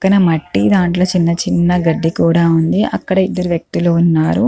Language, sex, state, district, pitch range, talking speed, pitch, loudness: Telugu, female, Andhra Pradesh, Chittoor, 165-185 Hz, 160 wpm, 170 Hz, -14 LUFS